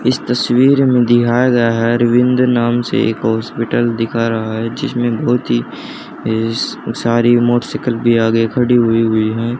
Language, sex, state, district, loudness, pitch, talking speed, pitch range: Hindi, male, Haryana, Charkhi Dadri, -14 LUFS, 120 Hz, 150 wpm, 115-120 Hz